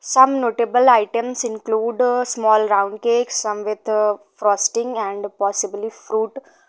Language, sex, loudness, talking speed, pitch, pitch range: English, female, -19 LUFS, 135 wpm, 220 Hz, 210-245 Hz